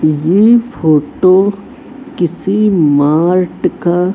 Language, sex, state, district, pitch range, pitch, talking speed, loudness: Hindi, female, Chhattisgarh, Raipur, 160-210 Hz, 185 Hz, 70 wpm, -12 LUFS